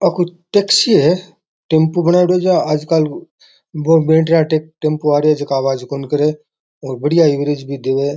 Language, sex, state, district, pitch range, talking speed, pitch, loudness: Rajasthani, male, Rajasthan, Nagaur, 145-175 Hz, 175 wpm, 155 Hz, -15 LUFS